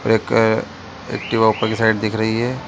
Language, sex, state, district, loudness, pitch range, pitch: Hindi, male, Chhattisgarh, Bilaspur, -18 LUFS, 110-115 Hz, 110 Hz